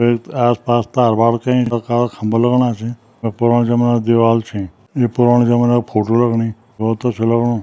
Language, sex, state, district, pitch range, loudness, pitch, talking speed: Garhwali, male, Uttarakhand, Tehri Garhwal, 115-120 Hz, -16 LUFS, 120 Hz, 175 wpm